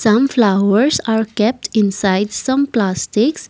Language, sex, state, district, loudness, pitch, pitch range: English, female, Assam, Kamrup Metropolitan, -16 LUFS, 220 Hz, 205-250 Hz